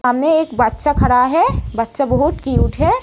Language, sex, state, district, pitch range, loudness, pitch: Hindi, female, Uttar Pradesh, Etah, 250-320 Hz, -16 LUFS, 275 Hz